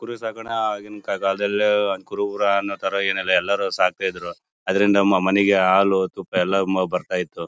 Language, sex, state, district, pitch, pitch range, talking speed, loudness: Kannada, male, Karnataka, Bellary, 100 Hz, 95-100 Hz, 150 wpm, -21 LUFS